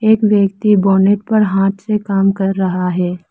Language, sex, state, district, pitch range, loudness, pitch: Hindi, female, Arunachal Pradesh, Lower Dibang Valley, 195-210 Hz, -14 LUFS, 195 Hz